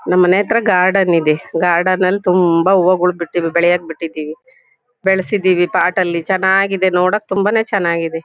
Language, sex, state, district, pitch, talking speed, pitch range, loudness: Kannada, female, Karnataka, Shimoga, 185 Hz, 145 wpm, 170-195 Hz, -14 LUFS